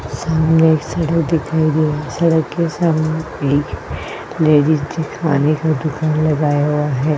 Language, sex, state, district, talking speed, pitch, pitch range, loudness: Hindi, female, Uttar Pradesh, Jyotiba Phule Nagar, 150 wpm, 155 Hz, 145-160 Hz, -17 LUFS